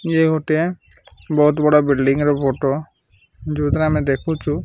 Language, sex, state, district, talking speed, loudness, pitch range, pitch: Odia, male, Odisha, Malkangiri, 140 wpm, -18 LUFS, 135-155 Hz, 150 Hz